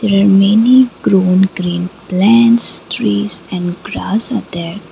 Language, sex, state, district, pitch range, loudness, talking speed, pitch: English, female, Assam, Kamrup Metropolitan, 180-220 Hz, -13 LUFS, 135 wpm, 195 Hz